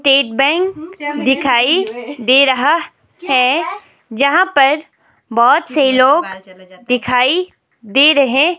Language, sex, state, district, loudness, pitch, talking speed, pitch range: Hindi, female, Himachal Pradesh, Shimla, -13 LUFS, 275 Hz, 100 wpm, 250-320 Hz